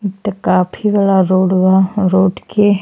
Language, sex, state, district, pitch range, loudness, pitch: Bhojpuri, female, Uttar Pradesh, Ghazipur, 185-205 Hz, -13 LUFS, 190 Hz